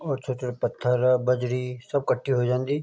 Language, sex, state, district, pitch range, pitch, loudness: Garhwali, male, Uttarakhand, Tehri Garhwal, 125-135 Hz, 125 Hz, -25 LUFS